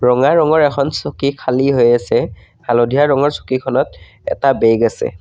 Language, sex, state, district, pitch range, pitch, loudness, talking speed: Assamese, male, Assam, Kamrup Metropolitan, 120-145 Hz, 135 Hz, -15 LUFS, 150 wpm